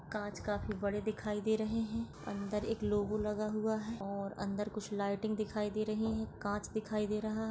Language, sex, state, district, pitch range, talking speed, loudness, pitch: Hindi, female, Maharashtra, Solapur, 205-220 Hz, 190 wpm, -37 LUFS, 215 Hz